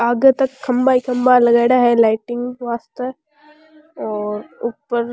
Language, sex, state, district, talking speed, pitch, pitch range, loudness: Rajasthani, female, Rajasthan, Churu, 150 wpm, 250 Hz, 235-265 Hz, -17 LUFS